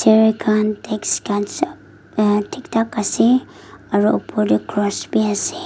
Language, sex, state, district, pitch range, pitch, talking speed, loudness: Nagamese, female, Nagaland, Dimapur, 205-220 Hz, 215 Hz, 160 wpm, -19 LUFS